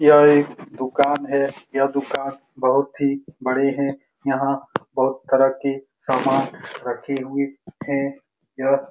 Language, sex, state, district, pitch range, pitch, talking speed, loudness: Hindi, male, Bihar, Saran, 135-140 Hz, 140 Hz, 135 wpm, -21 LUFS